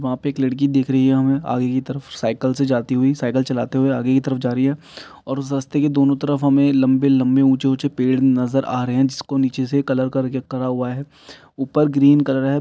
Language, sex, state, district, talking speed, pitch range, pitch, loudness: Maithili, male, Bihar, Samastipur, 235 wpm, 130-140 Hz, 135 Hz, -18 LUFS